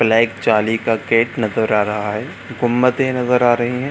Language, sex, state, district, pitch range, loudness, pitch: Hindi, male, Bihar, Supaul, 110-125 Hz, -17 LUFS, 115 Hz